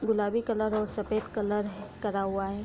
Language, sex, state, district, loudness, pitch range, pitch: Hindi, female, Bihar, Bhagalpur, -30 LUFS, 205-215 Hz, 210 Hz